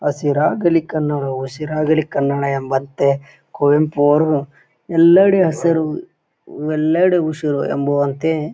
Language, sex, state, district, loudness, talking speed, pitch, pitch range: Kannada, male, Karnataka, Bijapur, -17 LUFS, 85 wpm, 150 Hz, 140-160 Hz